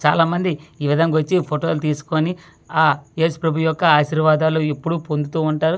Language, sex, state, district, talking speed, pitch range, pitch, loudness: Telugu, male, Andhra Pradesh, Manyam, 155 wpm, 150-165 Hz, 160 Hz, -19 LUFS